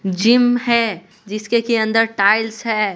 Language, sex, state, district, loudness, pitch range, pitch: Hindi, male, Bihar, West Champaran, -16 LUFS, 210-235 Hz, 220 Hz